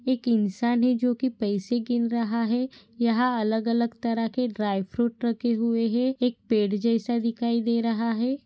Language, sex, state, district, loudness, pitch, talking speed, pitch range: Hindi, female, Maharashtra, Pune, -25 LUFS, 235 Hz, 185 wpm, 230-245 Hz